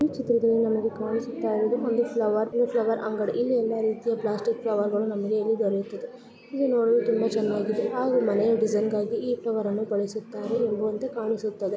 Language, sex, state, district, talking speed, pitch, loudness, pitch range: Kannada, female, Karnataka, Dakshina Kannada, 70 wpm, 225 Hz, -26 LUFS, 215-235 Hz